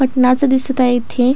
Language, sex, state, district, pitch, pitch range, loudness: Marathi, female, Maharashtra, Aurangabad, 255 Hz, 250-265 Hz, -14 LUFS